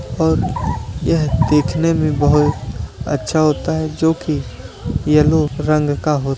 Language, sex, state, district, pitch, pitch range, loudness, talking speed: Hindi, male, Uttar Pradesh, Deoria, 150 Hz, 135-155 Hz, -17 LUFS, 130 wpm